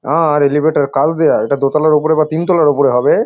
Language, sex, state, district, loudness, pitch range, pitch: Bengali, male, West Bengal, North 24 Parganas, -13 LUFS, 140-155 Hz, 150 Hz